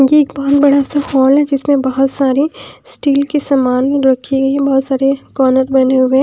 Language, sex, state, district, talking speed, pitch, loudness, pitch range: Hindi, female, Punjab, Pathankot, 200 wpm, 275 Hz, -13 LUFS, 265-280 Hz